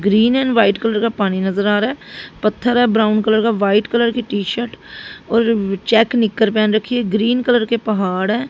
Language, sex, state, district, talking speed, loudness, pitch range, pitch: Hindi, female, Haryana, Jhajjar, 220 wpm, -16 LUFS, 210-235 Hz, 220 Hz